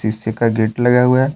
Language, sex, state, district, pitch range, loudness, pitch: Hindi, male, Jharkhand, Deoghar, 110-125 Hz, -15 LUFS, 115 Hz